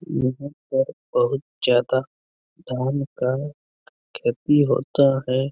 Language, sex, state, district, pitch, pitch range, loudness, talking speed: Hindi, male, Chhattisgarh, Bastar, 135 Hz, 125-150 Hz, -22 LUFS, 110 wpm